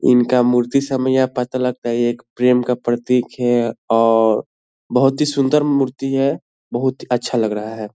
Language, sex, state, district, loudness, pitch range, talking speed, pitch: Hindi, male, Bihar, Lakhisarai, -18 LUFS, 120-130 Hz, 145 wpm, 125 Hz